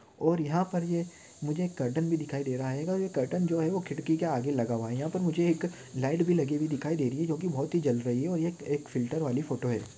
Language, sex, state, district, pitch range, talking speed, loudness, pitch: Hindi, male, Maharashtra, Pune, 135-170 Hz, 280 wpm, -30 LUFS, 155 Hz